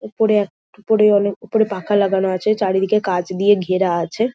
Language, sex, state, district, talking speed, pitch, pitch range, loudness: Bengali, female, West Bengal, Jhargram, 180 wpm, 200 Hz, 190-215 Hz, -17 LUFS